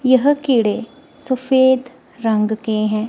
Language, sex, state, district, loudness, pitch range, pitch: Hindi, female, Himachal Pradesh, Shimla, -17 LUFS, 220-260 Hz, 255 Hz